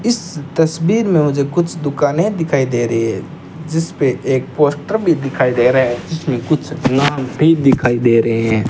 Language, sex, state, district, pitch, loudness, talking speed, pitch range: Hindi, male, Rajasthan, Bikaner, 145 Hz, -16 LUFS, 180 wpm, 130-160 Hz